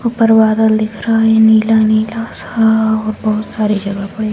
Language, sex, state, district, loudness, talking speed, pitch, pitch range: Hindi, female, Bihar, Jahanabad, -13 LUFS, 195 wpm, 220 Hz, 215-225 Hz